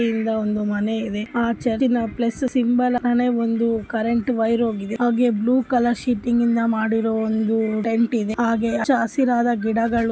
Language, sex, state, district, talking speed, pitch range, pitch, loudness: Kannada, female, Karnataka, Bellary, 150 wpm, 225-240 Hz, 230 Hz, -21 LUFS